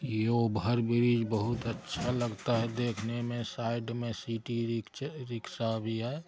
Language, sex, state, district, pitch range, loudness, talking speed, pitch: Hindi, male, Bihar, Araria, 115-120 Hz, -32 LUFS, 145 wpm, 115 Hz